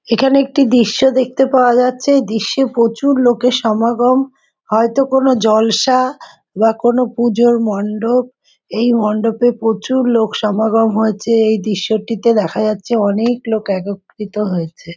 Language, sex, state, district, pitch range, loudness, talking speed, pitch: Bengali, female, West Bengal, Jhargram, 220-255 Hz, -14 LUFS, 135 wpm, 230 Hz